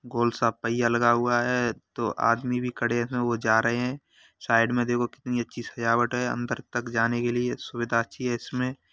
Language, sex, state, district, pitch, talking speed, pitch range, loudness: Hindi, male, Uttar Pradesh, Hamirpur, 120 Hz, 200 wpm, 115-125 Hz, -26 LUFS